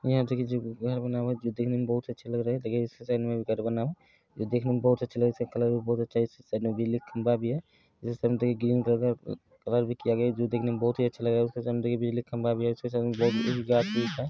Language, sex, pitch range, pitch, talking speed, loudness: Maithili, male, 115-120 Hz, 120 Hz, 200 wpm, -29 LUFS